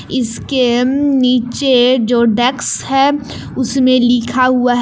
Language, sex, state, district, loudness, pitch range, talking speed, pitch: Hindi, female, Jharkhand, Palamu, -13 LUFS, 245-265 Hz, 110 wpm, 255 Hz